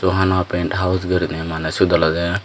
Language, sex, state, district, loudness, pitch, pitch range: Chakma, male, Tripura, Dhalai, -19 LUFS, 90 Hz, 80-95 Hz